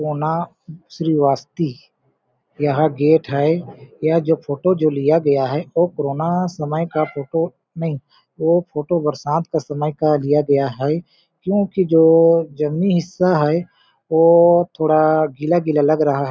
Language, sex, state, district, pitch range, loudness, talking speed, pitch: Hindi, male, Chhattisgarh, Balrampur, 150-170 Hz, -18 LUFS, 140 wpm, 155 Hz